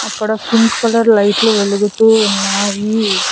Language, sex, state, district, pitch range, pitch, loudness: Telugu, female, Andhra Pradesh, Annamaya, 205-225 Hz, 215 Hz, -13 LUFS